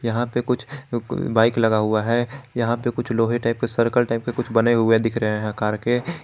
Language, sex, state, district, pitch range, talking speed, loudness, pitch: Hindi, male, Jharkhand, Garhwa, 115-120 Hz, 230 wpm, -21 LUFS, 115 Hz